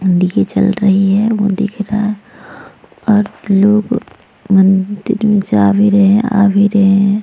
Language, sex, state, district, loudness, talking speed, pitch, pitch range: Hindi, female, Bihar, Vaishali, -12 LUFS, 160 wpm, 205 Hz, 195-210 Hz